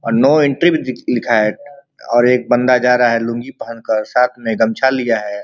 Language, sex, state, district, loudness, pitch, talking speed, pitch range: Bhojpuri, male, Uttar Pradesh, Ghazipur, -15 LUFS, 120 Hz, 230 wpm, 115-130 Hz